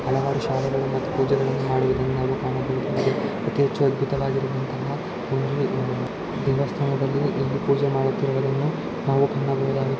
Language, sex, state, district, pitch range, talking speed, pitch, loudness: Kannada, male, Karnataka, Shimoga, 135-140 Hz, 110 wpm, 135 Hz, -24 LUFS